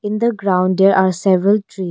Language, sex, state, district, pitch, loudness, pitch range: English, female, Arunachal Pradesh, Longding, 195 Hz, -15 LUFS, 185-205 Hz